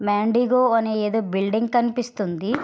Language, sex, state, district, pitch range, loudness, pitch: Telugu, female, Andhra Pradesh, Srikakulam, 205-240 Hz, -21 LUFS, 220 Hz